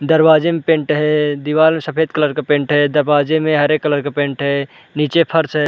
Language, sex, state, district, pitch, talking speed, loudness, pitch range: Hindi, male, Uttar Pradesh, Budaun, 150 Hz, 210 wpm, -15 LUFS, 145-160 Hz